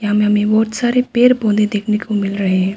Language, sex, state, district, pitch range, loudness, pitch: Hindi, female, Arunachal Pradesh, Papum Pare, 205-225 Hz, -15 LUFS, 210 Hz